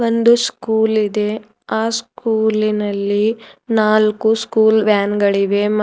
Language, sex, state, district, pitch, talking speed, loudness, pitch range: Kannada, female, Karnataka, Bidar, 220 Hz, 115 wpm, -16 LUFS, 210-225 Hz